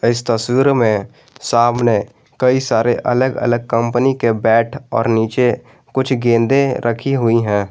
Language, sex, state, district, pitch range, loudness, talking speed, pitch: Hindi, male, Jharkhand, Garhwa, 115-130 Hz, -16 LUFS, 140 wpm, 120 Hz